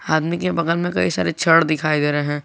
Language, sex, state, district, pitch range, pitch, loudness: Hindi, male, Jharkhand, Garhwa, 145-170 Hz, 155 Hz, -19 LUFS